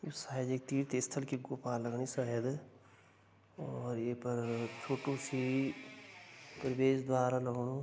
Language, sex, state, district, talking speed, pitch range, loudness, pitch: Garhwali, male, Uttarakhand, Tehri Garhwal, 125 wpm, 120-135 Hz, -37 LUFS, 130 Hz